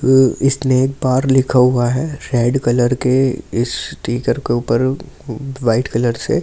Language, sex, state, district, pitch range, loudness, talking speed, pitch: Hindi, male, Delhi, New Delhi, 120-135 Hz, -16 LUFS, 140 wpm, 130 Hz